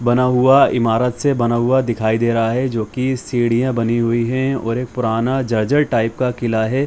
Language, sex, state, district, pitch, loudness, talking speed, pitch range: Hindi, male, Bihar, Jamui, 120 Hz, -17 LUFS, 210 wpm, 115-130 Hz